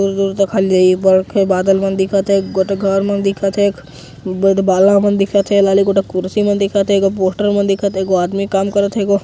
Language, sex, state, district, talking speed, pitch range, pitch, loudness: Hindi, male, Chhattisgarh, Jashpur, 220 wpm, 190-200 Hz, 195 Hz, -14 LUFS